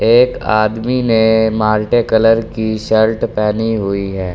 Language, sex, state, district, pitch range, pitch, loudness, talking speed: Hindi, male, Delhi, New Delhi, 110-115 Hz, 110 Hz, -14 LUFS, 140 wpm